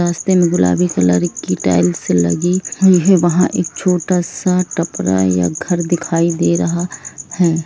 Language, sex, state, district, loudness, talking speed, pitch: Hindi, female, Jharkhand, Jamtara, -15 LUFS, 155 wpm, 170 Hz